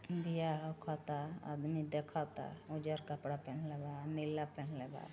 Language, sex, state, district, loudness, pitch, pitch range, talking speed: Hindi, female, Uttar Pradesh, Ghazipur, -42 LUFS, 150 Hz, 145-155 Hz, 140 wpm